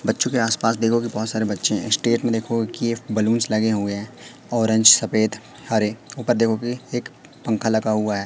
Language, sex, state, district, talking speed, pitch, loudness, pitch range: Hindi, female, Madhya Pradesh, Katni, 205 wpm, 115 Hz, -20 LUFS, 110-120 Hz